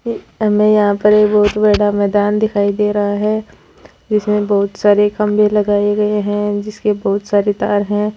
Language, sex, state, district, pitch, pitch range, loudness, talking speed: Marwari, female, Rajasthan, Churu, 210 Hz, 205-210 Hz, -14 LUFS, 170 wpm